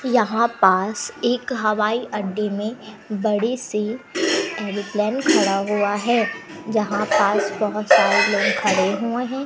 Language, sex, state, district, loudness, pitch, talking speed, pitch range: Hindi, female, Madhya Pradesh, Umaria, -20 LUFS, 215 Hz, 120 wpm, 210-245 Hz